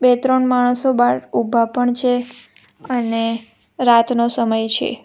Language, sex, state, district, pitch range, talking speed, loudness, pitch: Gujarati, female, Gujarat, Valsad, 230-250 Hz, 130 wpm, -17 LUFS, 245 Hz